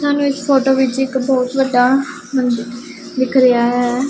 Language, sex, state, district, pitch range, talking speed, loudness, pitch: Punjabi, female, Punjab, Pathankot, 250-270 Hz, 160 wpm, -15 LUFS, 260 Hz